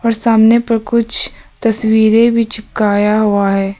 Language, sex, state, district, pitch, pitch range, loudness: Hindi, female, Arunachal Pradesh, Papum Pare, 220 Hz, 210-230 Hz, -12 LUFS